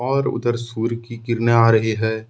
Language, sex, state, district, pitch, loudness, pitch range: Hindi, male, Jharkhand, Ranchi, 115 Hz, -19 LUFS, 110-120 Hz